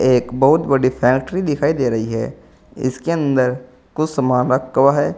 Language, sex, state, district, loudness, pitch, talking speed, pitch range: Hindi, male, Uttar Pradesh, Saharanpur, -17 LUFS, 130 Hz, 175 wpm, 125-140 Hz